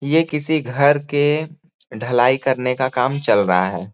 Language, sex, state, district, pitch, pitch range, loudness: Hindi, male, Jharkhand, Sahebganj, 140 Hz, 125-150 Hz, -18 LUFS